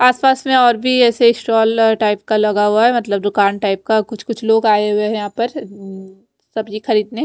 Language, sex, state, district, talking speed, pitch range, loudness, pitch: Hindi, female, Punjab, Fazilka, 205 wpm, 210-235 Hz, -15 LUFS, 220 Hz